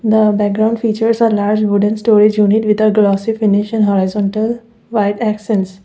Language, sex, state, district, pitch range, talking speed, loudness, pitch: English, female, Assam, Kamrup Metropolitan, 205-220 Hz, 165 wpm, -14 LUFS, 215 Hz